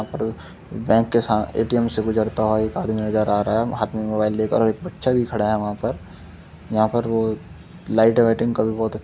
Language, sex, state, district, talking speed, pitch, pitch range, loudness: Hindi, male, Uttar Pradesh, Muzaffarnagar, 230 wpm, 110 Hz, 105-115 Hz, -21 LUFS